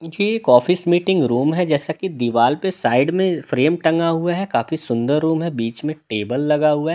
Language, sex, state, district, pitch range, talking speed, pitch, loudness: Hindi, male, Delhi, New Delhi, 130-175 Hz, 225 wpm, 155 Hz, -18 LUFS